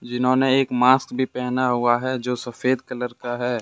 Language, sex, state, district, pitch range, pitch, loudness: Hindi, male, Jharkhand, Deoghar, 125-130 Hz, 125 Hz, -21 LUFS